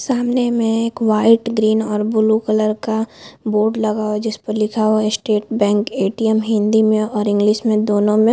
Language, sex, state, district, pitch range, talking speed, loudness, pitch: Hindi, female, Chhattisgarh, Bilaspur, 215-225 Hz, 200 wpm, -17 LUFS, 215 Hz